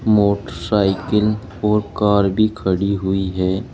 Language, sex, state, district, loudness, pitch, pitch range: Hindi, male, Uttar Pradesh, Saharanpur, -18 LUFS, 100 Hz, 95-105 Hz